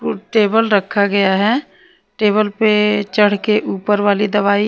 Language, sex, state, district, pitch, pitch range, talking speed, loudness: Hindi, female, Odisha, Nuapada, 210 Hz, 200-215 Hz, 140 wpm, -15 LUFS